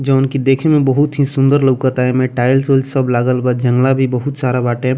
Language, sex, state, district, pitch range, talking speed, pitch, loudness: Bhojpuri, male, Bihar, Muzaffarpur, 125-135 Hz, 240 wpm, 130 Hz, -14 LUFS